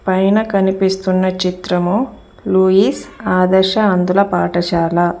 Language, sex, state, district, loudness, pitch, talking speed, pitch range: Telugu, female, Telangana, Mahabubabad, -15 LUFS, 185 Hz, 80 wpm, 180-195 Hz